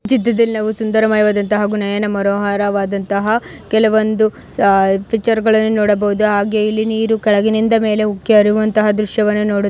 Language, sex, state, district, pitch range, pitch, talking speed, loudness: Kannada, female, Karnataka, Mysore, 205-220 Hz, 215 Hz, 110 wpm, -15 LUFS